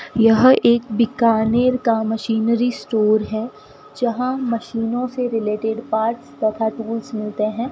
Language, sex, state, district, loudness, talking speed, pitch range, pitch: Hindi, female, Rajasthan, Bikaner, -19 LUFS, 125 wpm, 220-240 Hz, 230 Hz